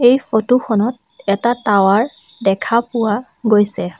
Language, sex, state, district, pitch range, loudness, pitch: Assamese, female, Assam, Sonitpur, 205-245 Hz, -16 LUFS, 225 Hz